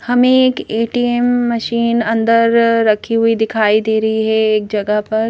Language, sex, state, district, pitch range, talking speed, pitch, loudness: Hindi, female, Madhya Pradesh, Bhopal, 220-235 Hz, 160 wpm, 225 Hz, -14 LUFS